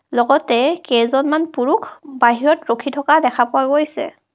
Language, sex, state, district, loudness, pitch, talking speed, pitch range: Assamese, female, Assam, Kamrup Metropolitan, -16 LUFS, 280 Hz, 125 wpm, 245-305 Hz